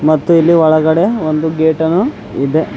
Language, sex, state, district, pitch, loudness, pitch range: Kannada, male, Karnataka, Bidar, 160 Hz, -12 LUFS, 155-165 Hz